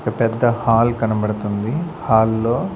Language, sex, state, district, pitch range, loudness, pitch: Telugu, male, Andhra Pradesh, Sri Satya Sai, 110-120 Hz, -18 LUFS, 115 Hz